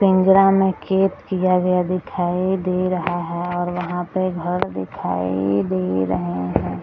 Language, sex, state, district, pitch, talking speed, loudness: Hindi, female, Bihar, Gaya, 180 Hz, 160 wpm, -20 LUFS